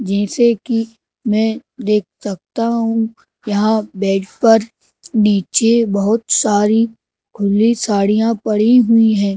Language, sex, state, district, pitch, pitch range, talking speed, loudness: Hindi, male, Madhya Pradesh, Bhopal, 220 Hz, 205-230 Hz, 110 wpm, -15 LUFS